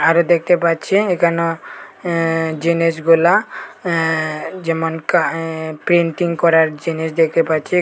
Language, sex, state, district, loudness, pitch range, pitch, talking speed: Bengali, male, Tripura, Unakoti, -17 LUFS, 160-170 Hz, 165 Hz, 115 wpm